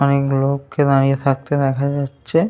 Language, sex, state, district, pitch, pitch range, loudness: Bengali, male, West Bengal, Purulia, 140 Hz, 135-140 Hz, -18 LUFS